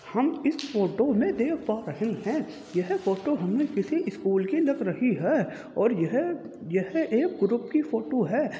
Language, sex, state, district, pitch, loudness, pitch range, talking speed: Hindi, male, Uttar Pradesh, Jyotiba Phule Nagar, 230 Hz, -27 LUFS, 195-295 Hz, 175 wpm